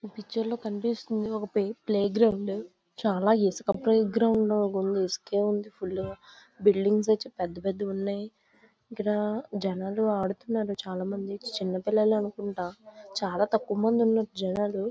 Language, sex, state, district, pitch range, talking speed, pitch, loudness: Telugu, female, Andhra Pradesh, Visakhapatnam, 195-220 Hz, 140 wpm, 205 Hz, -28 LUFS